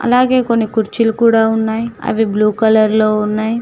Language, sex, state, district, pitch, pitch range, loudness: Telugu, female, Telangana, Mahabubabad, 220 Hz, 215-230 Hz, -14 LUFS